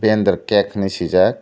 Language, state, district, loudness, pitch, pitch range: Kokborok, Tripura, Dhalai, -17 LUFS, 100 Hz, 95-110 Hz